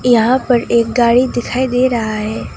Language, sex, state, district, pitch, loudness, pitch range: Hindi, female, West Bengal, Alipurduar, 240 Hz, -14 LUFS, 230-250 Hz